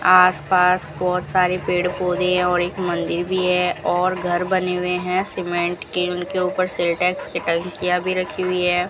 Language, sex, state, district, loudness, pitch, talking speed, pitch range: Hindi, female, Rajasthan, Bikaner, -20 LUFS, 180 Hz, 175 wpm, 180-185 Hz